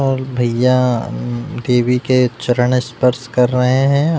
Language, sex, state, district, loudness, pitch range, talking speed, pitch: Hindi, male, Uttar Pradesh, Deoria, -16 LUFS, 125-130 Hz, 145 wpm, 125 Hz